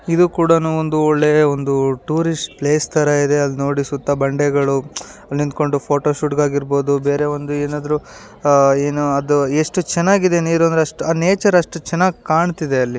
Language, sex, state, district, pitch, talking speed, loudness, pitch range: Kannada, female, Karnataka, Shimoga, 150 Hz, 145 wpm, -17 LUFS, 140-165 Hz